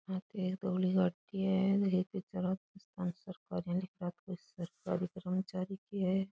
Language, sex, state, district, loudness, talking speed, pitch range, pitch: Rajasthani, female, Rajasthan, Churu, -36 LUFS, 95 wpm, 185-195 Hz, 185 Hz